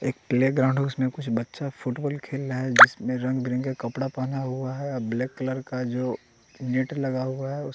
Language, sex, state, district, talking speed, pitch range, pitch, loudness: Hindi, male, Bihar, West Champaran, 210 wpm, 125-135 Hz, 130 Hz, -25 LUFS